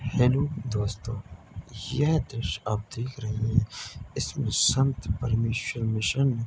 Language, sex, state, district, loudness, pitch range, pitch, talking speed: Hindi, male, Bihar, Bhagalpur, -27 LUFS, 110-130 Hz, 115 Hz, 120 wpm